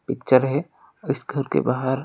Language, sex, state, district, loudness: Hindi, male, Odisha, Khordha, -22 LUFS